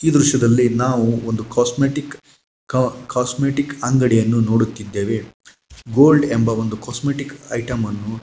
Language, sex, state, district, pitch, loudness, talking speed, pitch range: Kannada, male, Karnataka, Shimoga, 120 Hz, -18 LUFS, 110 wpm, 115-140 Hz